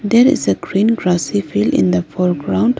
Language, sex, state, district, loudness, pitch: English, female, Arunachal Pradesh, Lower Dibang Valley, -16 LUFS, 180 Hz